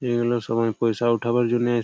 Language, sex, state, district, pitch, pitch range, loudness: Bengali, male, West Bengal, Malda, 120 Hz, 115-120 Hz, -22 LUFS